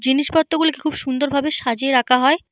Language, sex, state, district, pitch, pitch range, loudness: Bengali, female, Jharkhand, Jamtara, 280 Hz, 260-310 Hz, -18 LUFS